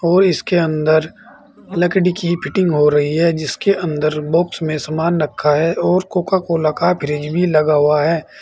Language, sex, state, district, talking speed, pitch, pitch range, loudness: Hindi, male, Uttar Pradesh, Saharanpur, 180 wpm, 165 Hz, 155-180 Hz, -16 LUFS